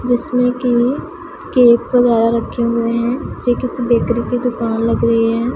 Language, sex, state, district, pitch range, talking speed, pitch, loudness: Hindi, female, Punjab, Pathankot, 235-245 Hz, 160 wpm, 240 Hz, -15 LUFS